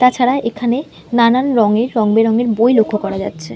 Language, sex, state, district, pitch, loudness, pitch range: Bengali, female, West Bengal, North 24 Parganas, 230 Hz, -15 LUFS, 220-245 Hz